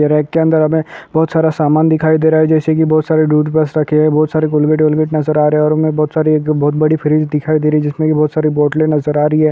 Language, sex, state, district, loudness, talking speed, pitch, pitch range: Hindi, male, Chhattisgarh, Kabirdham, -13 LUFS, 275 wpm, 155 Hz, 150-155 Hz